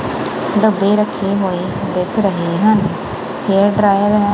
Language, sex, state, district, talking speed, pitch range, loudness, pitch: Punjabi, female, Punjab, Kapurthala, 125 wpm, 185-210 Hz, -16 LUFS, 200 Hz